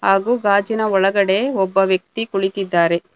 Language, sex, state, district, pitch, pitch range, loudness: Kannada, female, Karnataka, Bangalore, 195 Hz, 190-210 Hz, -17 LUFS